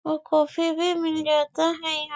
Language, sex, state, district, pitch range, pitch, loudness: Hindi, female, Chhattisgarh, Bastar, 305-330 Hz, 315 Hz, -23 LUFS